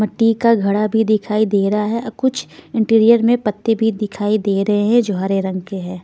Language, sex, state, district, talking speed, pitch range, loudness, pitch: Hindi, female, Bihar, Patna, 220 wpm, 200-225 Hz, -17 LUFS, 215 Hz